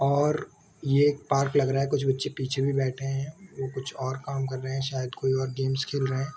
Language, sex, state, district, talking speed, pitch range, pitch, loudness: Hindi, male, Jharkhand, Sahebganj, 255 wpm, 130-140 Hz, 135 Hz, -28 LUFS